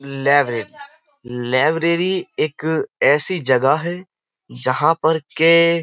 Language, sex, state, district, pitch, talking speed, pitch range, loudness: Hindi, male, Uttar Pradesh, Jyotiba Phule Nagar, 165 Hz, 105 wpm, 140-190 Hz, -17 LUFS